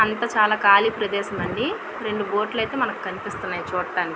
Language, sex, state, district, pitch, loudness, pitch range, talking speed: Telugu, female, Andhra Pradesh, Visakhapatnam, 210 Hz, -22 LUFS, 200-220 Hz, 175 wpm